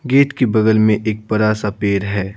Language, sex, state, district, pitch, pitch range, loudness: Hindi, male, Bihar, Patna, 110 Hz, 105-110 Hz, -16 LUFS